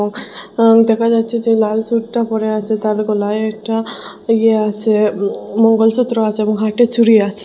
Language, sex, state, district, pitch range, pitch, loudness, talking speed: Bengali, female, Assam, Hailakandi, 215-225 Hz, 220 Hz, -15 LUFS, 155 wpm